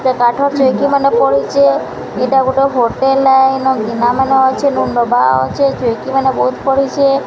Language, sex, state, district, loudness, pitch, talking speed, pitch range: Odia, female, Odisha, Sambalpur, -13 LUFS, 265 Hz, 150 wpm, 240-275 Hz